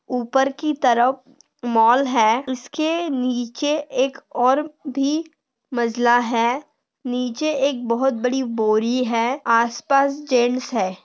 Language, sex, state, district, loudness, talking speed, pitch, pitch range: Hindi, female, Maharashtra, Pune, -20 LUFS, 115 wpm, 255 Hz, 240-275 Hz